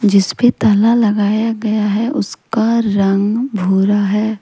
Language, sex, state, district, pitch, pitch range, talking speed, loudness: Hindi, female, Jharkhand, Deoghar, 215 Hz, 205-225 Hz, 120 wpm, -14 LUFS